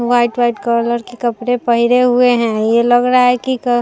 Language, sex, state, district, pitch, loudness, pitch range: Hindi, female, Bihar, Vaishali, 240 Hz, -14 LUFS, 235-245 Hz